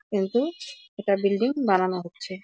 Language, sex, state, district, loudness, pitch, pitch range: Bengali, female, West Bengal, Jalpaiguri, -25 LUFS, 200 Hz, 190-275 Hz